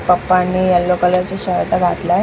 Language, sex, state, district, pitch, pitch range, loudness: Marathi, female, Maharashtra, Mumbai Suburban, 180 Hz, 180-185 Hz, -15 LUFS